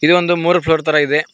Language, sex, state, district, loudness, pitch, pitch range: Kannada, male, Karnataka, Koppal, -14 LUFS, 160 Hz, 155-175 Hz